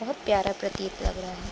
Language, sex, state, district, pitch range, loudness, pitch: Hindi, female, Uttar Pradesh, Budaun, 190-205 Hz, -29 LUFS, 195 Hz